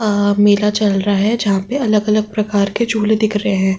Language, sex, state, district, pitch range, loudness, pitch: Hindi, female, Uttar Pradesh, Jyotiba Phule Nagar, 200-215 Hz, -15 LUFS, 210 Hz